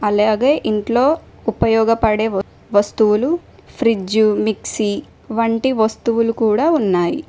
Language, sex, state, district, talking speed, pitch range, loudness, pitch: Telugu, female, Telangana, Mahabubabad, 80 wpm, 210-235 Hz, -17 LUFS, 220 Hz